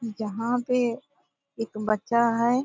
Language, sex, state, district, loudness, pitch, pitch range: Hindi, female, Bihar, Purnia, -26 LUFS, 235 Hz, 220-245 Hz